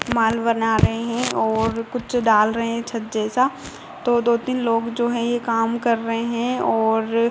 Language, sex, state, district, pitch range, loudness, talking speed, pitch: Hindi, female, Uttar Pradesh, Budaun, 225-240 Hz, -21 LUFS, 190 wpm, 230 Hz